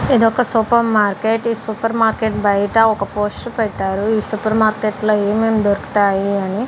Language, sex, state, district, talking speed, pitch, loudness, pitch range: Telugu, female, Andhra Pradesh, Sri Satya Sai, 150 wpm, 215 Hz, -17 LUFS, 205-225 Hz